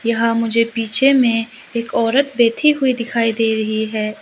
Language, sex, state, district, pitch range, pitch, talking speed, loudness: Hindi, female, Arunachal Pradesh, Lower Dibang Valley, 225-245 Hz, 230 Hz, 170 wpm, -17 LUFS